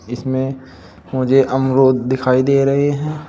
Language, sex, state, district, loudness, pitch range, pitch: Hindi, male, Uttar Pradesh, Saharanpur, -16 LUFS, 130-135 Hz, 130 Hz